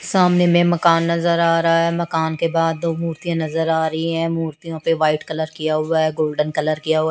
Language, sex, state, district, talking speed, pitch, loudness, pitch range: Hindi, female, Chandigarh, Chandigarh, 235 wpm, 165 Hz, -19 LUFS, 160-170 Hz